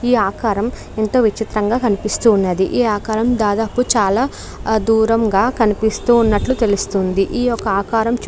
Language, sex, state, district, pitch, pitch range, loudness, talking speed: Telugu, female, Andhra Pradesh, Krishna, 220 Hz, 205-235 Hz, -16 LUFS, 130 wpm